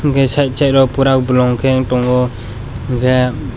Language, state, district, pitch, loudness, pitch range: Kokborok, Tripura, West Tripura, 130 Hz, -14 LUFS, 125-135 Hz